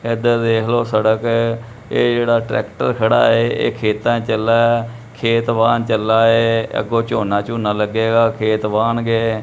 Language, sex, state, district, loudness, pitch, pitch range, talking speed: Punjabi, male, Punjab, Kapurthala, -16 LUFS, 115 Hz, 110-115 Hz, 165 wpm